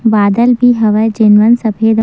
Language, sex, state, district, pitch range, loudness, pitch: Chhattisgarhi, female, Chhattisgarh, Sukma, 215-235 Hz, -10 LUFS, 225 Hz